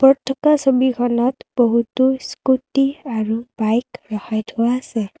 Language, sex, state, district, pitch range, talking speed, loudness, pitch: Assamese, female, Assam, Kamrup Metropolitan, 230-265 Hz, 115 wpm, -19 LUFS, 245 Hz